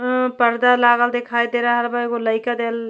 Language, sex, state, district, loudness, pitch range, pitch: Bhojpuri, female, Uttar Pradesh, Ghazipur, -18 LUFS, 235-245 Hz, 240 Hz